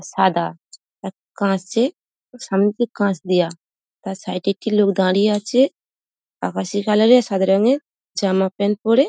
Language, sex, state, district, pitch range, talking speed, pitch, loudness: Bengali, female, West Bengal, Dakshin Dinajpur, 185-220 Hz, 160 wpm, 200 Hz, -19 LUFS